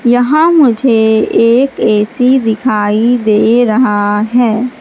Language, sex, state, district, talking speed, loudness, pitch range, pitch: Hindi, female, Madhya Pradesh, Katni, 100 wpm, -10 LUFS, 215-255 Hz, 235 Hz